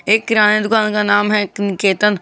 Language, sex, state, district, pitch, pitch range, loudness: Hindi, male, Jharkhand, Garhwa, 210 Hz, 205-215 Hz, -15 LUFS